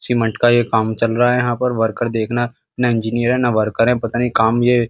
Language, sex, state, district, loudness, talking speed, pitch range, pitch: Hindi, male, Uttar Pradesh, Muzaffarnagar, -17 LUFS, 270 wpm, 115-120 Hz, 120 Hz